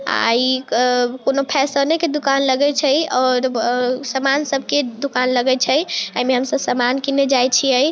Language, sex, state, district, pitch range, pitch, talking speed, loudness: Maithili, female, Bihar, Sitamarhi, 255-280 Hz, 265 Hz, 190 wpm, -17 LUFS